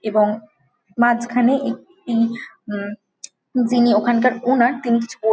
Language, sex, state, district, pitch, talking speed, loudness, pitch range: Bengali, female, West Bengal, Jhargram, 235 Hz, 125 wpm, -19 LUFS, 215-245 Hz